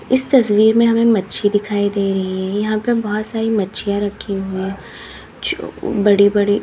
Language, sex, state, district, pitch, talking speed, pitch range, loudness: Hindi, female, Uttar Pradesh, Lalitpur, 205 Hz, 180 wpm, 200-220 Hz, -17 LUFS